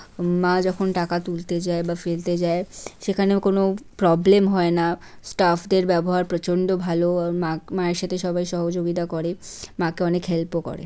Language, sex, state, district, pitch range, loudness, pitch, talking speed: Bengali, female, West Bengal, Kolkata, 170-185 Hz, -22 LUFS, 175 Hz, 160 wpm